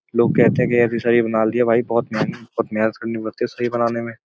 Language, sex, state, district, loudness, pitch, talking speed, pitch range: Hindi, male, Uttar Pradesh, Budaun, -19 LUFS, 115 Hz, 255 wpm, 115-120 Hz